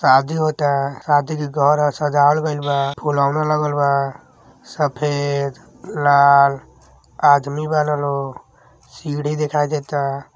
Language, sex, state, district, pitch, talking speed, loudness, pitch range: Bhojpuri, male, Uttar Pradesh, Deoria, 145 Hz, 115 wpm, -18 LUFS, 140-150 Hz